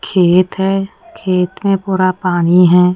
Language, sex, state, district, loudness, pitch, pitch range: Hindi, female, Odisha, Nuapada, -13 LUFS, 185 Hz, 180-195 Hz